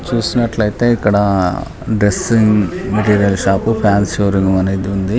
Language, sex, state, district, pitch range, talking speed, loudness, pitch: Telugu, male, Telangana, Nalgonda, 95-110 Hz, 105 wpm, -14 LUFS, 105 Hz